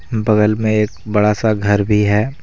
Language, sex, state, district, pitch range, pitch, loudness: Hindi, male, Jharkhand, Deoghar, 105-110 Hz, 105 Hz, -15 LUFS